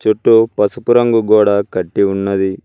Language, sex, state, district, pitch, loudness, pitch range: Telugu, male, Telangana, Mahabubabad, 105 Hz, -13 LUFS, 100-115 Hz